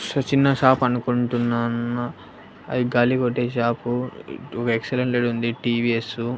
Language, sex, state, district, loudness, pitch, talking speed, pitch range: Telugu, male, Andhra Pradesh, Annamaya, -22 LUFS, 120 Hz, 120 wpm, 120-125 Hz